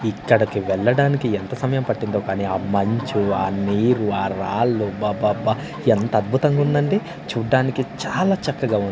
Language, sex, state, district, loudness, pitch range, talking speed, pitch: Telugu, male, Andhra Pradesh, Manyam, -21 LUFS, 100-130 Hz, 135 wpm, 110 Hz